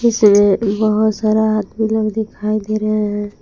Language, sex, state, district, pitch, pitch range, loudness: Hindi, female, Jharkhand, Palamu, 215 Hz, 210-220 Hz, -16 LUFS